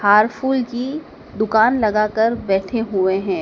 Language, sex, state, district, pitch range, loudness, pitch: Hindi, female, Madhya Pradesh, Dhar, 205-240 Hz, -18 LUFS, 220 Hz